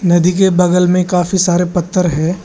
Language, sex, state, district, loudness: Hindi, male, Arunachal Pradesh, Lower Dibang Valley, -13 LUFS